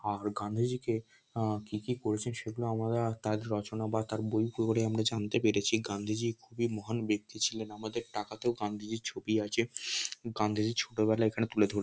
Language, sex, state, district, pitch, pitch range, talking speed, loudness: Bengali, male, West Bengal, North 24 Parganas, 110 Hz, 105-115 Hz, 160 wpm, -33 LUFS